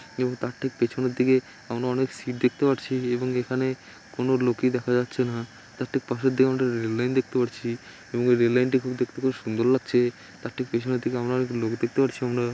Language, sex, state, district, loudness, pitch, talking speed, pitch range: Bengali, male, West Bengal, Malda, -25 LUFS, 125 Hz, 220 wpm, 120-130 Hz